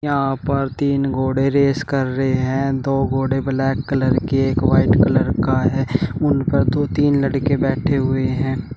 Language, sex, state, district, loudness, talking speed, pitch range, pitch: Hindi, male, Uttar Pradesh, Shamli, -18 LUFS, 180 wpm, 130-140 Hz, 135 Hz